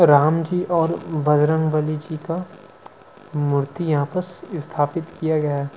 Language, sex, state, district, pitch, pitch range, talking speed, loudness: Hindi, male, Chhattisgarh, Sukma, 155 Hz, 150-170 Hz, 135 wpm, -21 LUFS